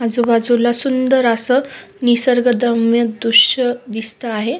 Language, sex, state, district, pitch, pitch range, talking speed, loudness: Marathi, female, Maharashtra, Sindhudurg, 240 Hz, 230-250 Hz, 90 wpm, -15 LUFS